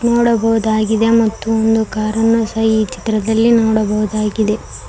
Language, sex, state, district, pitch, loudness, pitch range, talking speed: Kannada, female, Karnataka, Koppal, 220 Hz, -15 LUFS, 215-225 Hz, 100 wpm